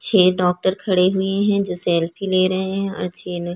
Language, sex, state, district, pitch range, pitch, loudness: Hindi, female, Chhattisgarh, Korba, 180-195 Hz, 185 Hz, -19 LUFS